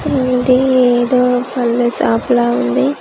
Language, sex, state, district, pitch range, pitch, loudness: Telugu, female, Andhra Pradesh, Manyam, 240-255 Hz, 245 Hz, -13 LUFS